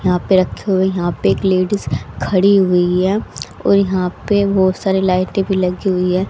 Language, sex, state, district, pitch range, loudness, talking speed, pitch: Hindi, female, Haryana, Rohtak, 185-195 Hz, -16 LUFS, 200 wpm, 190 Hz